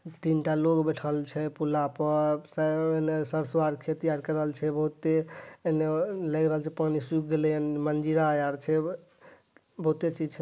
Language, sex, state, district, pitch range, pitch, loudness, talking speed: Maithili, male, Bihar, Madhepura, 150-160 Hz, 155 Hz, -28 LUFS, 155 wpm